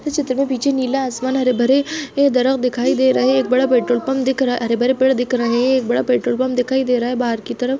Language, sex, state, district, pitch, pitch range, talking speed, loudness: Hindi, female, Chhattisgarh, Bastar, 255 Hz, 245-265 Hz, 275 wpm, -17 LUFS